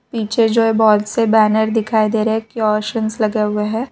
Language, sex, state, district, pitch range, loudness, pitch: Hindi, female, Gujarat, Valsad, 215-225 Hz, -16 LUFS, 220 Hz